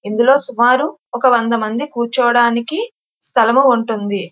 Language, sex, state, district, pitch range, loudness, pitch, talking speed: Telugu, female, Andhra Pradesh, Visakhapatnam, 230-260 Hz, -15 LUFS, 240 Hz, 110 wpm